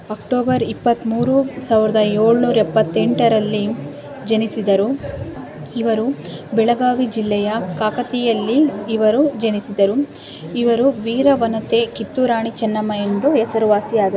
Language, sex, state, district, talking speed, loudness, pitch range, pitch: Kannada, female, Karnataka, Dharwad, 100 wpm, -17 LUFS, 210-240 Hz, 225 Hz